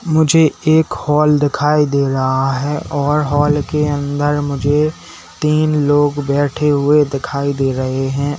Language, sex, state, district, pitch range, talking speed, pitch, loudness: Hindi, male, Uttar Pradesh, Saharanpur, 140-150 Hz, 145 wpm, 145 Hz, -15 LUFS